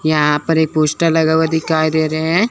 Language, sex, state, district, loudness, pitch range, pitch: Hindi, male, Chandigarh, Chandigarh, -15 LUFS, 155-160 Hz, 160 Hz